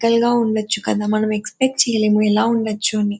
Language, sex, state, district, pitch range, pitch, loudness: Telugu, female, Andhra Pradesh, Anantapur, 210-230 Hz, 215 Hz, -18 LUFS